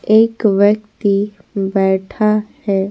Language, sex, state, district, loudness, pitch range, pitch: Hindi, female, Bihar, Patna, -16 LUFS, 195-215 Hz, 205 Hz